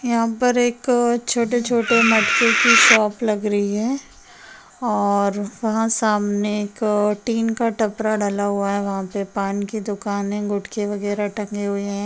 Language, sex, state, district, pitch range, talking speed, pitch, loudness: Hindi, female, Bihar, Sitamarhi, 205-230 Hz, 165 wpm, 210 Hz, -19 LUFS